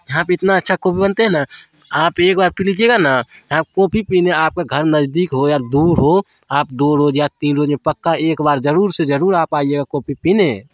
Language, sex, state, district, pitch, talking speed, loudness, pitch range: Hindi, male, Bihar, Saharsa, 160 Hz, 230 wpm, -15 LUFS, 145-185 Hz